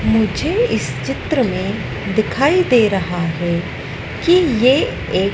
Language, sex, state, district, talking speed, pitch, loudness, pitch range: Hindi, female, Madhya Pradesh, Dhar, 125 wpm, 220 Hz, -17 LUFS, 190-295 Hz